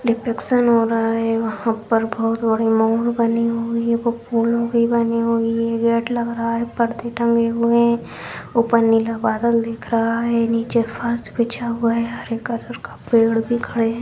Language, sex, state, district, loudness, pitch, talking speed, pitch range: Hindi, female, Bihar, Jahanabad, -19 LUFS, 230 Hz, 180 wpm, 230-235 Hz